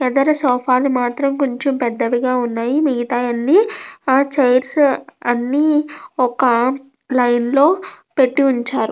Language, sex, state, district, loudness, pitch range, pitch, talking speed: Telugu, female, Andhra Pradesh, Krishna, -17 LUFS, 245-285 Hz, 260 Hz, 105 wpm